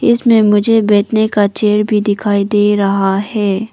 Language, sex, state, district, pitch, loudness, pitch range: Hindi, female, Arunachal Pradesh, Papum Pare, 210 Hz, -12 LUFS, 200-220 Hz